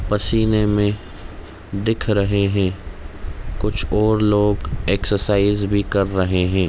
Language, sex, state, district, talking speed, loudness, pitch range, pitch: Hindi, male, Chhattisgarh, Raigarh, 115 wpm, -19 LUFS, 95-105 Hz, 100 Hz